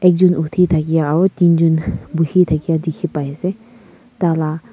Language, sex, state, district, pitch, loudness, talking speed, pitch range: Nagamese, female, Nagaland, Kohima, 165 Hz, -16 LUFS, 75 wpm, 160-180 Hz